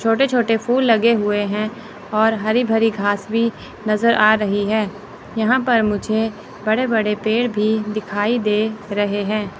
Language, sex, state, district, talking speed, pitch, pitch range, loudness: Hindi, male, Chandigarh, Chandigarh, 165 wpm, 215 Hz, 210-225 Hz, -18 LUFS